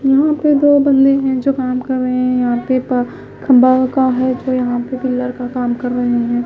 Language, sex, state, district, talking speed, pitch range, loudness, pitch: Hindi, female, Himachal Pradesh, Shimla, 230 wpm, 250-265 Hz, -15 LUFS, 255 Hz